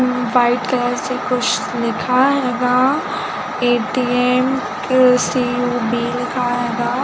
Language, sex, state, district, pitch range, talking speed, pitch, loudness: Hindi, female, Chhattisgarh, Balrampur, 245-255 Hz, 85 wpm, 250 Hz, -17 LUFS